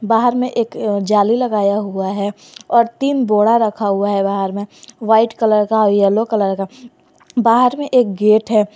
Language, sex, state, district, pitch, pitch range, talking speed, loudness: Hindi, female, Jharkhand, Garhwa, 215 Hz, 205-235 Hz, 180 wpm, -15 LUFS